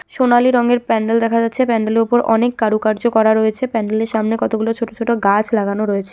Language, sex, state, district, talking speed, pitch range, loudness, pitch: Bengali, female, West Bengal, Jalpaiguri, 205 wpm, 220-240 Hz, -16 LUFS, 225 Hz